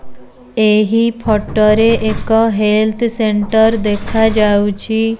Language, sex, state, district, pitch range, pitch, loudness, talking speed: Odia, female, Odisha, Nuapada, 210-225 Hz, 215 Hz, -13 LUFS, 80 wpm